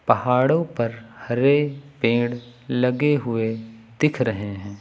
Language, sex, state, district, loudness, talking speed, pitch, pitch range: Hindi, male, Uttar Pradesh, Lucknow, -22 LUFS, 110 wpm, 120 Hz, 115-140 Hz